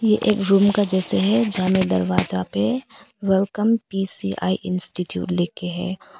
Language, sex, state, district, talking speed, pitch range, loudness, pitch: Hindi, female, Arunachal Pradesh, Papum Pare, 155 wpm, 180-210 Hz, -21 LUFS, 190 Hz